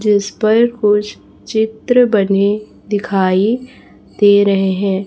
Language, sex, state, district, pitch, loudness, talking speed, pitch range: Hindi, female, Chhattisgarh, Raipur, 210 Hz, -14 LUFS, 105 wpm, 200-220 Hz